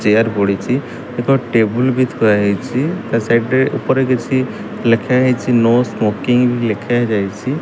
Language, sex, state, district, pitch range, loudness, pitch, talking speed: Odia, male, Odisha, Khordha, 110-130 Hz, -16 LUFS, 120 Hz, 120 wpm